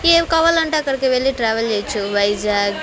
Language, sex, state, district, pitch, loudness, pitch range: Telugu, female, Andhra Pradesh, Sri Satya Sai, 255 Hz, -17 LUFS, 205-315 Hz